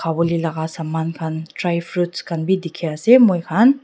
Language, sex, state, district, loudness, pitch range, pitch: Nagamese, female, Nagaland, Dimapur, -19 LUFS, 160-180 Hz, 170 Hz